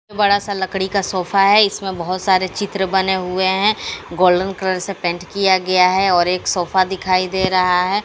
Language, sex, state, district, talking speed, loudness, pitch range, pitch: Hindi, female, Odisha, Sambalpur, 200 wpm, -17 LUFS, 185-195 Hz, 190 Hz